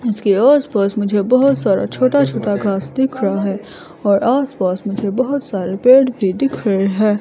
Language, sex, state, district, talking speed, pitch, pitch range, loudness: Hindi, female, Himachal Pradesh, Shimla, 190 wpm, 210 Hz, 200-260 Hz, -16 LUFS